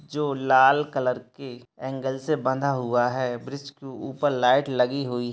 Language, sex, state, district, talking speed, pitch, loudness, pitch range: Hindi, male, Bihar, Begusarai, 180 wpm, 130 Hz, -24 LUFS, 125-140 Hz